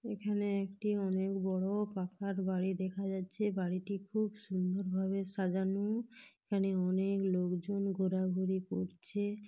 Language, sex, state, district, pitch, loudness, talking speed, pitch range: Bengali, female, West Bengal, Dakshin Dinajpur, 195 Hz, -36 LUFS, 120 wpm, 185-205 Hz